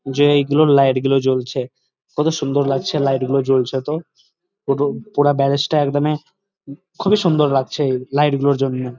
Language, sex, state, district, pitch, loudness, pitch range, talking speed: Bengali, male, West Bengal, Dakshin Dinajpur, 140 Hz, -18 LUFS, 135-150 Hz, 155 wpm